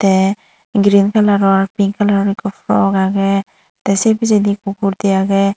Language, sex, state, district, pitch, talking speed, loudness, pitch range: Chakma, female, Tripura, Unakoti, 195 Hz, 160 wpm, -14 LUFS, 195-205 Hz